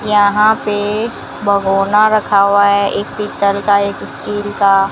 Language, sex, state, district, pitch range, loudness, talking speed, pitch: Hindi, female, Rajasthan, Bikaner, 200-210 Hz, -14 LUFS, 160 wpm, 205 Hz